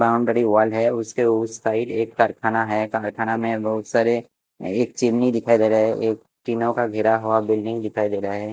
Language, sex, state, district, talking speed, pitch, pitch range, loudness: Hindi, male, Bihar, West Champaran, 205 wpm, 115 Hz, 110-115 Hz, -21 LUFS